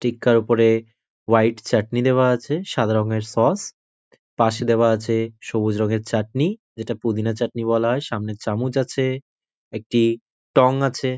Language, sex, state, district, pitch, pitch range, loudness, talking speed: Bengali, male, West Bengal, North 24 Parganas, 115 Hz, 110-125 Hz, -21 LUFS, 140 wpm